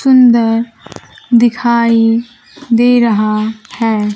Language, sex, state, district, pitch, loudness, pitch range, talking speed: Hindi, female, Bihar, Kaimur, 230 Hz, -12 LUFS, 225-240 Hz, 70 wpm